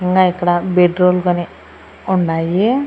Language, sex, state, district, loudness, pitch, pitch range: Telugu, female, Andhra Pradesh, Annamaya, -15 LUFS, 180 Hz, 170-180 Hz